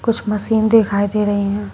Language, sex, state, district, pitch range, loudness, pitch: Hindi, female, Uttar Pradesh, Shamli, 205-220 Hz, -16 LUFS, 210 Hz